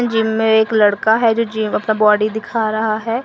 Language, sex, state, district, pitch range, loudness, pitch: Hindi, female, Assam, Sonitpur, 215-225 Hz, -15 LUFS, 220 Hz